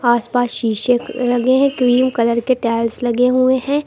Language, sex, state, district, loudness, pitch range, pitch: Hindi, female, Uttar Pradesh, Lucknow, -16 LUFS, 235-255 Hz, 245 Hz